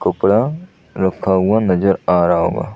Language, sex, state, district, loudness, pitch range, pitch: Hindi, male, Bihar, Saran, -16 LUFS, 90-110 Hz, 95 Hz